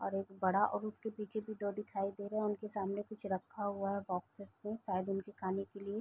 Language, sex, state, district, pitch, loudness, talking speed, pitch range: Hindi, female, Bihar, East Champaran, 200 Hz, -39 LUFS, 250 wpm, 195-210 Hz